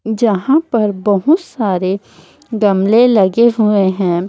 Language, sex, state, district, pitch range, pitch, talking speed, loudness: Hindi, female, Chhattisgarh, Raipur, 195-235 Hz, 210 Hz, 110 wpm, -13 LUFS